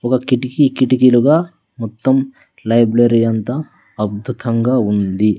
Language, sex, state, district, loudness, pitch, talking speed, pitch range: Telugu, male, Andhra Pradesh, Sri Satya Sai, -15 LUFS, 120 Hz, 90 wpm, 110-130 Hz